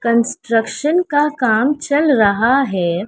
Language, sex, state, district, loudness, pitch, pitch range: Hindi, female, Bihar, West Champaran, -16 LUFS, 255 Hz, 225-290 Hz